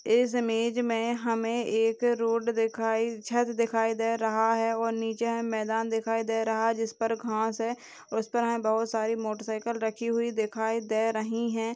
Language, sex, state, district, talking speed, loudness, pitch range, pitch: Hindi, female, Bihar, Madhepura, 185 wpm, -28 LUFS, 225-230 Hz, 225 Hz